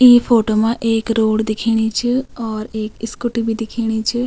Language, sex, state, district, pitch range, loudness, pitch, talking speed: Garhwali, female, Uttarakhand, Tehri Garhwal, 220-240 Hz, -17 LUFS, 225 Hz, 180 wpm